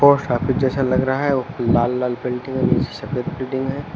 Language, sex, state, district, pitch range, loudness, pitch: Hindi, male, Uttar Pradesh, Lucknow, 125-135 Hz, -20 LUFS, 130 Hz